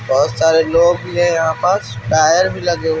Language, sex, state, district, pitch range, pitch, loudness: Hindi, male, Bihar, Darbhanga, 155-175 Hz, 160 Hz, -15 LUFS